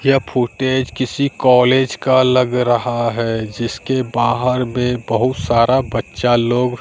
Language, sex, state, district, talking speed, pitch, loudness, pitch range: Hindi, male, Bihar, Katihar, 130 wpm, 125 Hz, -16 LUFS, 120-130 Hz